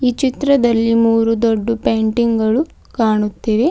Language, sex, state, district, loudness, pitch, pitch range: Kannada, female, Karnataka, Bidar, -16 LUFS, 230 Hz, 225-245 Hz